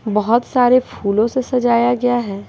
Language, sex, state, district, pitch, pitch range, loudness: Hindi, female, Bihar, West Champaran, 240 Hz, 215-245 Hz, -16 LUFS